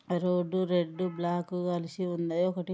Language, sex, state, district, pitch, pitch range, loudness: Telugu, female, Andhra Pradesh, Guntur, 180 Hz, 175-180 Hz, -31 LUFS